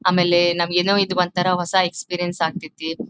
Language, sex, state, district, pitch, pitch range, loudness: Kannada, female, Karnataka, Dharwad, 180 Hz, 175-185 Hz, -20 LUFS